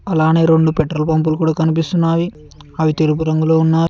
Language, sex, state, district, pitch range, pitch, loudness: Telugu, male, Telangana, Mahabubabad, 155-165 Hz, 160 Hz, -15 LUFS